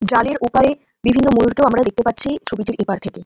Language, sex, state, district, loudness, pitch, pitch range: Bengali, female, West Bengal, North 24 Parganas, -17 LUFS, 240 Hz, 225-270 Hz